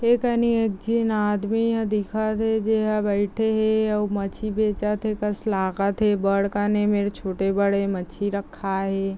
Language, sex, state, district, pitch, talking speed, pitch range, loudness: Chhattisgarhi, female, Chhattisgarh, Raigarh, 210 Hz, 130 wpm, 200-220 Hz, -23 LUFS